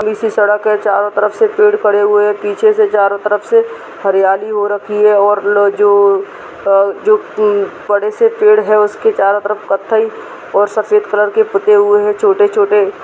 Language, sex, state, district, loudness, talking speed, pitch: Hindi, female, Rajasthan, Churu, -12 LUFS, 175 wpm, 210 Hz